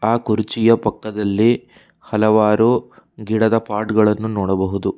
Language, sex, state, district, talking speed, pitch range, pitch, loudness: Kannada, male, Karnataka, Bangalore, 95 wpm, 105-110 Hz, 110 Hz, -17 LUFS